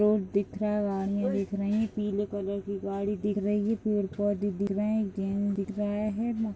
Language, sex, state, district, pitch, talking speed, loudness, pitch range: Hindi, female, Jharkhand, Jamtara, 205 Hz, 200 wpm, -30 LUFS, 200-210 Hz